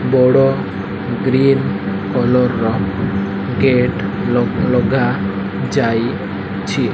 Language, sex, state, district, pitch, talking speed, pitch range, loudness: Odia, male, Odisha, Malkangiri, 100 Hz, 70 wpm, 95-125 Hz, -16 LUFS